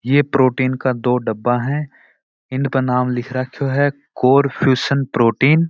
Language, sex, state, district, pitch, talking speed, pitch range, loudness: Marwari, male, Rajasthan, Churu, 130 Hz, 160 wpm, 125-140 Hz, -18 LUFS